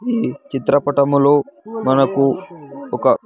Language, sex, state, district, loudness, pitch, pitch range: Telugu, male, Andhra Pradesh, Sri Satya Sai, -17 LUFS, 140 Hz, 140-190 Hz